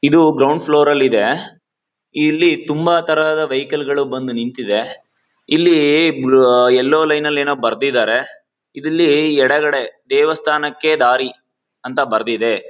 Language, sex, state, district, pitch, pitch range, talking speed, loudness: Kannada, male, Karnataka, Mysore, 150 Hz, 130-155 Hz, 105 wpm, -15 LUFS